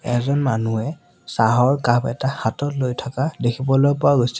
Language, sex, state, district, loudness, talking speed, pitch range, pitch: Assamese, male, Assam, Sonitpur, -20 LUFS, 150 wpm, 120-140 Hz, 130 Hz